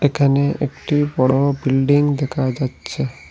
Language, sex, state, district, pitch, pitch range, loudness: Bengali, male, Assam, Hailakandi, 140 Hz, 135-145 Hz, -18 LUFS